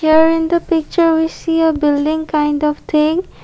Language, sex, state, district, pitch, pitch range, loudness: English, female, Assam, Kamrup Metropolitan, 320 Hz, 300-325 Hz, -15 LUFS